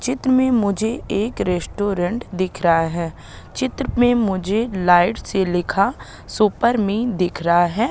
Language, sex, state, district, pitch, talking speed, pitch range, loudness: Hindi, female, Madhya Pradesh, Katni, 200 Hz, 145 wpm, 180-235 Hz, -19 LUFS